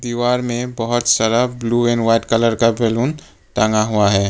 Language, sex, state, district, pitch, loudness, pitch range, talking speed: Hindi, male, Arunachal Pradesh, Papum Pare, 115 Hz, -17 LUFS, 115-120 Hz, 180 wpm